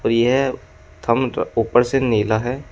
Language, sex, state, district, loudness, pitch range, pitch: Hindi, male, Uttar Pradesh, Shamli, -19 LUFS, 115-135 Hz, 120 Hz